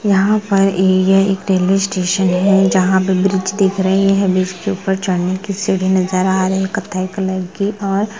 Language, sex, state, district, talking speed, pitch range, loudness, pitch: Hindi, female, Chhattisgarh, Rajnandgaon, 205 wpm, 185-195 Hz, -15 LUFS, 190 Hz